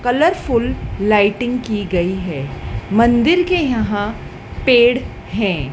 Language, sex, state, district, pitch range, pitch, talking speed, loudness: Hindi, female, Madhya Pradesh, Dhar, 200-245 Hz, 225 Hz, 115 wpm, -17 LUFS